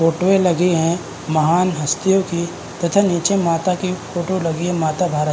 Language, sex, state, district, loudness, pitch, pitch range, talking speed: Hindi, male, Uttarakhand, Uttarkashi, -18 LUFS, 175 Hz, 165-185 Hz, 170 wpm